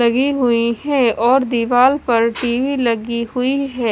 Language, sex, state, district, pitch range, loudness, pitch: Hindi, female, Chandigarh, Chandigarh, 235-265 Hz, -16 LUFS, 245 Hz